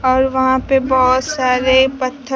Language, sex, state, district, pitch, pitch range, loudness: Hindi, female, Bihar, Kaimur, 260 Hz, 255-265 Hz, -14 LUFS